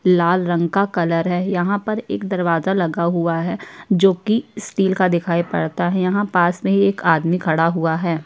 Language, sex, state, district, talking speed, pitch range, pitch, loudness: Hindi, female, Uttar Pradesh, Jyotiba Phule Nagar, 205 wpm, 170-195 Hz, 180 Hz, -19 LUFS